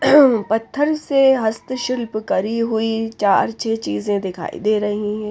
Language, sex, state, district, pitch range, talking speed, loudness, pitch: Hindi, female, Haryana, Rohtak, 210-250 Hz, 135 wpm, -19 LUFS, 225 Hz